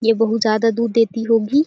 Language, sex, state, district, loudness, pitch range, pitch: Hindi, female, Chhattisgarh, Sarguja, -17 LUFS, 225-230 Hz, 225 Hz